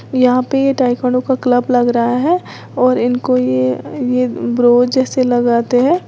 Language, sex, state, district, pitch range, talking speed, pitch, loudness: Hindi, female, Uttar Pradesh, Lalitpur, 245-255 Hz, 150 wpm, 250 Hz, -14 LUFS